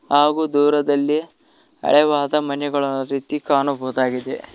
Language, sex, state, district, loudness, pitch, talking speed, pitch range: Kannada, male, Karnataka, Koppal, -19 LUFS, 145 Hz, 80 wpm, 140-150 Hz